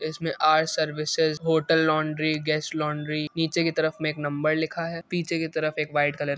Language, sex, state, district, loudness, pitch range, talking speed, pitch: Hindi, male, Uttar Pradesh, Etah, -25 LUFS, 150-160 Hz, 205 wpm, 155 Hz